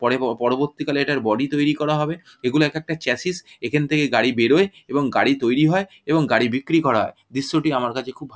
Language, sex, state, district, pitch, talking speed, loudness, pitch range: Bengali, male, West Bengal, Jhargram, 145 Hz, 220 wpm, -21 LUFS, 130-155 Hz